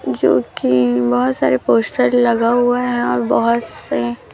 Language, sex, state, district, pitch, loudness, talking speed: Hindi, female, Chhattisgarh, Raipur, 200 Hz, -16 LUFS, 150 wpm